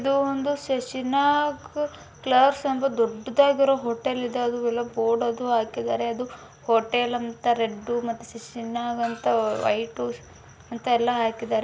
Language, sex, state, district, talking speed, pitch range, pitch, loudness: Kannada, female, Karnataka, Bijapur, 75 wpm, 230-265 Hz, 240 Hz, -24 LUFS